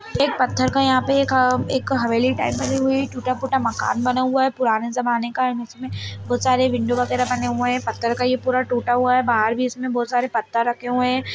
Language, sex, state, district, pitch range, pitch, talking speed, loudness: Hindi, female, Bihar, Jahanabad, 240-255 Hz, 250 Hz, 240 wpm, -20 LUFS